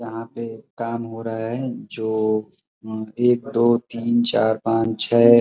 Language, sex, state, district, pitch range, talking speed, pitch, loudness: Hindi, male, Uttar Pradesh, Ghazipur, 110-120 Hz, 155 wpm, 115 Hz, -22 LUFS